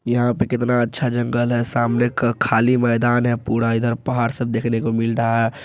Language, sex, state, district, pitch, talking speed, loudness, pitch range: Hindi, male, Bihar, Araria, 120 Hz, 210 wpm, -19 LUFS, 115-120 Hz